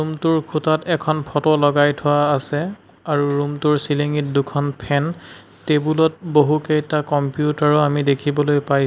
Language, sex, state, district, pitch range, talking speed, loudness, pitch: Assamese, male, Assam, Sonitpur, 145-155 Hz, 155 wpm, -19 LUFS, 145 Hz